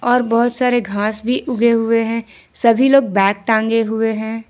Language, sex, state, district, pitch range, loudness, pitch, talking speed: Hindi, female, Jharkhand, Ranchi, 220-245 Hz, -16 LUFS, 230 Hz, 185 wpm